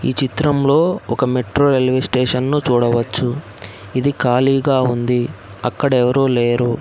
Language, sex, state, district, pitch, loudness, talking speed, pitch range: Telugu, male, Telangana, Hyderabad, 125 Hz, -17 LUFS, 125 wpm, 120-135 Hz